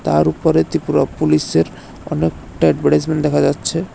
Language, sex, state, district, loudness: Bengali, male, Tripura, West Tripura, -17 LUFS